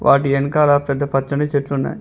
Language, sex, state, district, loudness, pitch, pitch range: Telugu, male, Telangana, Mahabubabad, -17 LUFS, 140 Hz, 140-145 Hz